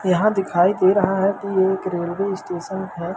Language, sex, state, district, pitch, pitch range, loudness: Hindi, male, Madhya Pradesh, Umaria, 190 Hz, 180-195 Hz, -20 LUFS